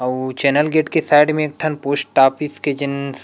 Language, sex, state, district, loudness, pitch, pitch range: Chhattisgarhi, male, Chhattisgarh, Rajnandgaon, -17 LUFS, 145 Hz, 140-150 Hz